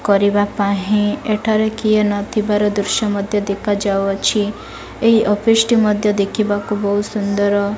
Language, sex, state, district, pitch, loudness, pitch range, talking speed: Odia, female, Odisha, Malkangiri, 205 Hz, -17 LUFS, 205-215 Hz, 130 wpm